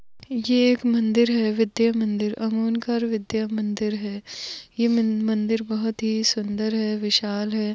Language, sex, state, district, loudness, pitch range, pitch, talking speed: Hindi, female, Goa, North and South Goa, -23 LUFS, 215-230 Hz, 220 Hz, 125 wpm